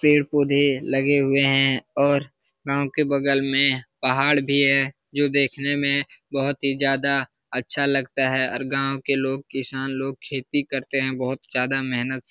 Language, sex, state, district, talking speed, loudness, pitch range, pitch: Hindi, male, Bihar, Lakhisarai, 170 wpm, -21 LUFS, 135-140 Hz, 135 Hz